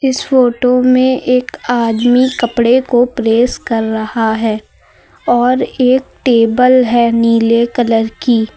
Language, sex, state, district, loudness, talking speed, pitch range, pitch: Hindi, female, Uttar Pradesh, Lucknow, -12 LUFS, 135 wpm, 230-255 Hz, 240 Hz